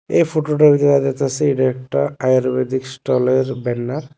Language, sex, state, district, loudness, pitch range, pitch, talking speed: Bengali, male, Tripura, West Tripura, -17 LUFS, 130-145 Hz, 130 Hz, 145 wpm